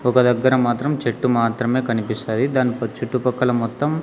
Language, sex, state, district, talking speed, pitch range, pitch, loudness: Telugu, male, Andhra Pradesh, Sri Satya Sai, 135 wpm, 115-130 Hz, 125 Hz, -20 LUFS